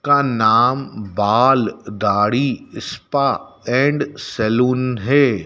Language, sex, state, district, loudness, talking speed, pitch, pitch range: Hindi, male, Madhya Pradesh, Dhar, -17 LUFS, 90 wpm, 125 Hz, 110-135 Hz